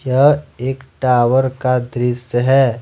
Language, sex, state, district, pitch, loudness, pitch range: Hindi, male, Jharkhand, Ranchi, 130 Hz, -16 LUFS, 125-135 Hz